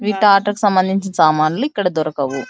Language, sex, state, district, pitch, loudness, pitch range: Telugu, female, Andhra Pradesh, Anantapur, 185 Hz, -16 LUFS, 155-205 Hz